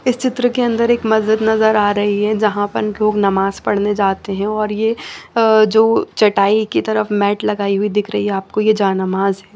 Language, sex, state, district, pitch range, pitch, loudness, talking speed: Hindi, female, Chandigarh, Chandigarh, 200-220 Hz, 210 Hz, -16 LUFS, 205 wpm